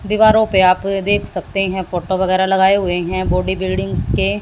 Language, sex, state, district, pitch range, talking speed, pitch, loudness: Hindi, female, Haryana, Jhajjar, 185-200 Hz, 190 wpm, 190 Hz, -16 LUFS